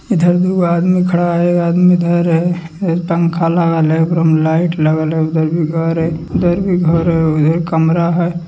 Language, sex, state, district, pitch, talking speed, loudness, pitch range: Hindi, male, Bihar, Madhepura, 170 Hz, 200 wpm, -14 LUFS, 160-175 Hz